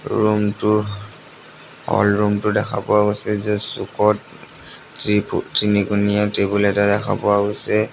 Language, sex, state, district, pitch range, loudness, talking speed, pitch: Assamese, male, Assam, Sonitpur, 100-105 Hz, -19 LUFS, 120 wpm, 105 Hz